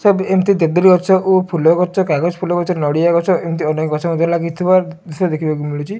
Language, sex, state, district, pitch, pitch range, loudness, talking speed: Odia, male, Odisha, Malkangiri, 175 Hz, 160-185 Hz, -15 LUFS, 200 wpm